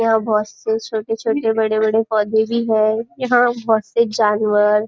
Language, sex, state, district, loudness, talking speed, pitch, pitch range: Hindi, female, Maharashtra, Nagpur, -18 LUFS, 185 wpm, 220 Hz, 215-225 Hz